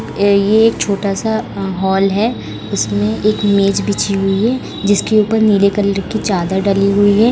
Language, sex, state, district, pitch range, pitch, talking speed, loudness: Hindi, female, Uttar Pradesh, Budaun, 195-215 Hz, 200 Hz, 180 wpm, -14 LUFS